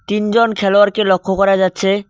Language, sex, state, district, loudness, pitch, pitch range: Bengali, male, West Bengal, Cooch Behar, -14 LUFS, 195 Hz, 195-210 Hz